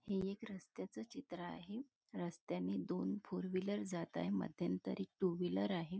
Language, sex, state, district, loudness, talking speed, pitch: Marathi, female, Maharashtra, Nagpur, -43 LUFS, 160 wpm, 175 Hz